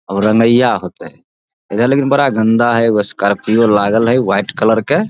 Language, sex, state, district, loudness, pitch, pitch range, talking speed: Maithili, male, Bihar, Samastipur, -13 LUFS, 115 Hz, 105-125 Hz, 175 wpm